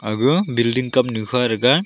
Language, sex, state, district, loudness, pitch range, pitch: Wancho, male, Arunachal Pradesh, Longding, -19 LUFS, 115-130 Hz, 125 Hz